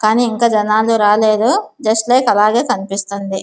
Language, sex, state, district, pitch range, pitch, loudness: Telugu, female, Andhra Pradesh, Visakhapatnam, 210-235 Hz, 215 Hz, -14 LUFS